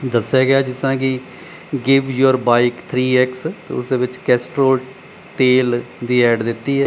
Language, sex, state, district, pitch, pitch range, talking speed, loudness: Punjabi, male, Punjab, Pathankot, 130 Hz, 125-135 Hz, 185 wpm, -17 LUFS